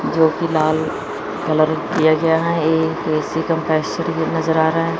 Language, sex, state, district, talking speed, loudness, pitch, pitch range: Hindi, female, Chandigarh, Chandigarh, 180 wpm, -18 LUFS, 160 Hz, 155-165 Hz